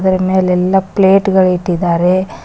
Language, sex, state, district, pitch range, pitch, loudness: Kannada, female, Karnataka, Koppal, 180-190 Hz, 185 Hz, -12 LUFS